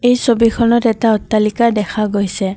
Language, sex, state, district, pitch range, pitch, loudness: Assamese, female, Assam, Kamrup Metropolitan, 210-235 Hz, 225 Hz, -14 LUFS